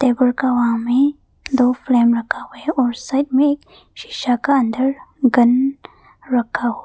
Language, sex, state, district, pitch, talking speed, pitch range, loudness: Hindi, female, Arunachal Pradesh, Papum Pare, 255 Hz, 160 wpm, 240-275 Hz, -18 LUFS